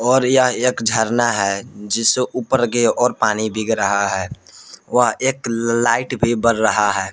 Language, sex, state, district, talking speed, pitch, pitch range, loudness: Hindi, male, Jharkhand, Palamu, 170 wpm, 115 Hz, 105-125 Hz, -17 LUFS